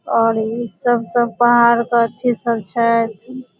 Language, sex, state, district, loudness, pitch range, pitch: Maithili, female, Bihar, Supaul, -16 LUFS, 230-240 Hz, 235 Hz